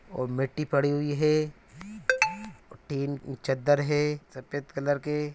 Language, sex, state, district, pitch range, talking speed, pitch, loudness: Hindi, male, Bihar, Araria, 140-155 Hz, 135 wpm, 145 Hz, -28 LUFS